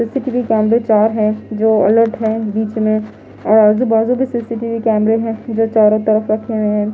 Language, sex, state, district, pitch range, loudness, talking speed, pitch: Hindi, female, Himachal Pradesh, Shimla, 215-230 Hz, -15 LUFS, 165 wpm, 220 Hz